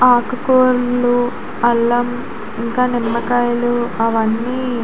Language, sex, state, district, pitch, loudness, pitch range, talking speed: Telugu, female, Andhra Pradesh, Visakhapatnam, 240 Hz, -17 LUFS, 235-245 Hz, 75 wpm